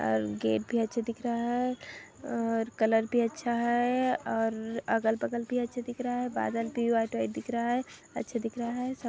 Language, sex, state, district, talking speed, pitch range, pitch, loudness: Hindi, female, Chhattisgarh, Kabirdham, 205 wpm, 225-245 Hz, 235 Hz, -31 LUFS